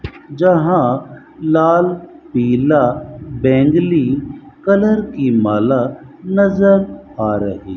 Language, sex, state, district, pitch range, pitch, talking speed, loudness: Hindi, male, Rajasthan, Bikaner, 125-180 Hz, 150 Hz, 75 wpm, -15 LUFS